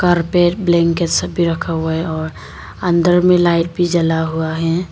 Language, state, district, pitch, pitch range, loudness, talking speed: Hindi, Arunachal Pradesh, Lower Dibang Valley, 170 Hz, 165-175 Hz, -16 LUFS, 195 wpm